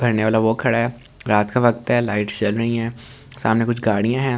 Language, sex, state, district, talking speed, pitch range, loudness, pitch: Hindi, male, Delhi, New Delhi, 235 wpm, 110-120 Hz, -20 LUFS, 115 Hz